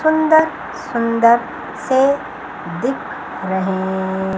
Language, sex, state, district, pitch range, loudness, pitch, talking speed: Hindi, female, Chandigarh, Chandigarh, 190-275 Hz, -17 LUFS, 230 Hz, 70 wpm